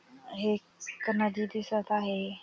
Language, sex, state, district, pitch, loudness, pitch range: Marathi, male, Maharashtra, Dhule, 210 Hz, -32 LUFS, 210-215 Hz